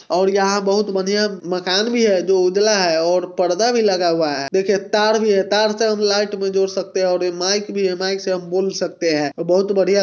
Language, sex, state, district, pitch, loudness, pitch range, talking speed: Hindi, male, Bihar, Sitamarhi, 195 Hz, -18 LUFS, 180-205 Hz, 245 wpm